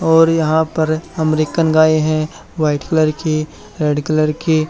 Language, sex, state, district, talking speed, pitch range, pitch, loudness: Hindi, male, Haryana, Charkhi Dadri, 155 wpm, 155-160 Hz, 155 Hz, -16 LUFS